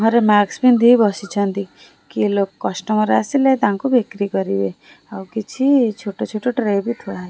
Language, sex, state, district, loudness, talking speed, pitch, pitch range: Odia, female, Odisha, Khordha, -18 LUFS, 155 wpm, 210 Hz, 200-235 Hz